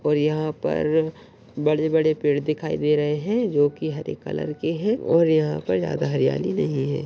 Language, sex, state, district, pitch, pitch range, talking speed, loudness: Hindi, male, Maharashtra, Solapur, 155 Hz, 145-160 Hz, 195 wpm, -23 LUFS